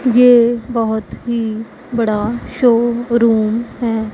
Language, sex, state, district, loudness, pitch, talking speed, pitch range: Hindi, female, Punjab, Pathankot, -15 LUFS, 235 Hz, 85 wpm, 220-240 Hz